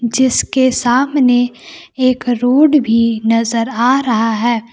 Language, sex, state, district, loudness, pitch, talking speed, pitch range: Hindi, female, Jharkhand, Palamu, -13 LUFS, 245 Hz, 115 wpm, 230-260 Hz